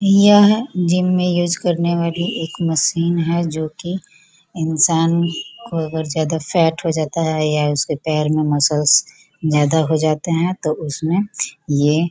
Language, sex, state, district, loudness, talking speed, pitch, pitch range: Hindi, female, Bihar, Gopalganj, -17 LUFS, 160 wpm, 165 Hz, 155-175 Hz